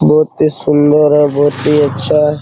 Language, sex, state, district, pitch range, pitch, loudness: Hindi, male, Bihar, Araria, 145-150 Hz, 150 Hz, -11 LUFS